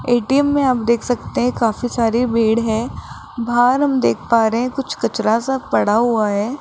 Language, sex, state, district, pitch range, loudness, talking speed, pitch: Hindi, female, Rajasthan, Jaipur, 225-255 Hz, -17 LUFS, 200 wpm, 235 Hz